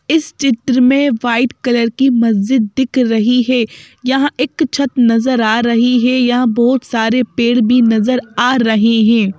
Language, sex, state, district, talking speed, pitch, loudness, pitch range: Hindi, female, Madhya Pradesh, Bhopal, 165 wpm, 245 Hz, -13 LUFS, 230-260 Hz